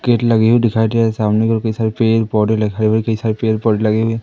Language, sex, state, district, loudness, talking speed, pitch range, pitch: Hindi, male, Madhya Pradesh, Katni, -15 LUFS, 310 wpm, 110-115 Hz, 110 Hz